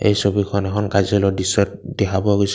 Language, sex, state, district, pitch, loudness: Assamese, male, Assam, Kamrup Metropolitan, 100 Hz, -19 LUFS